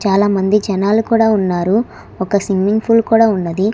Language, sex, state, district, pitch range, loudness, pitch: Telugu, female, Telangana, Hyderabad, 195-220 Hz, -14 LUFS, 205 Hz